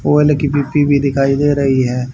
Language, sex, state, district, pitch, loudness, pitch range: Hindi, male, Haryana, Charkhi Dadri, 140 Hz, -14 LUFS, 135-145 Hz